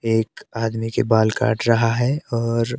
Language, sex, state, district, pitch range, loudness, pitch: Hindi, male, Himachal Pradesh, Shimla, 115-120 Hz, -20 LUFS, 115 Hz